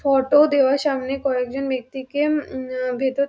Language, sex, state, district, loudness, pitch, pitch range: Bengali, female, West Bengal, Dakshin Dinajpur, -21 LUFS, 270 Hz, 260-280 Hz